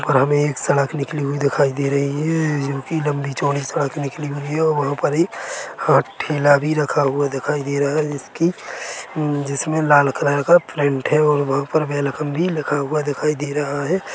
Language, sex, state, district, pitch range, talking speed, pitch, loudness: Hindi, male, Chhattisgarh, Korba, 140-150 Hz, 210 wpm, 145 Hz, -19 LUFS